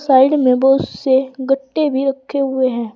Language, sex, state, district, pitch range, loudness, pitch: Hindi, female, Uttar Pradesh, Saharanpur, 260-275 Hz, -16 LUFS, 270 Hz